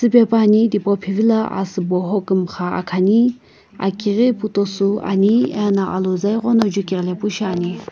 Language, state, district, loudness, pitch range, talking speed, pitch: Sumi, Nagaland, Kohima, -18 LUFS, 190-220 Hz, 120 wpm, 200 Hz